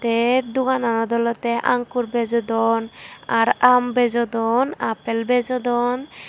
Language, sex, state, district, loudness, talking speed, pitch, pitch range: Chakma, female, Tripura, Dhalai, -20 LUFS, 95 wpm, 235 Hz, 230-245 Hz